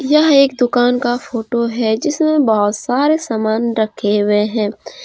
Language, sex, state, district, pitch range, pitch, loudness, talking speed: Hindi, female, Jharkhand, Deoghar, 220-270 Hz, 235 Hz, -15 LUFS, 155 wpm